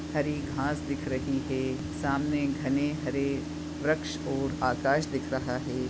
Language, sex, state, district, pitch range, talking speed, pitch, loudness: Hindi, female, Maharashtra, Nagpur, 135-150 Hz, 140 wpm, 145 Hz, -30 LUFS